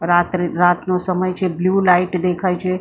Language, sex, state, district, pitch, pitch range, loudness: Gujarati, female, Maharashtra, Mumbai Suburban, 180 Hz, 175-185 Hz, -17 LUFS